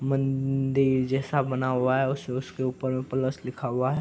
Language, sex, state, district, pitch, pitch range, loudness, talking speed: Hindi, male, Bihar, Araria, 130 Hz, 130-135 Hz, -27 LUFS, 195 wpm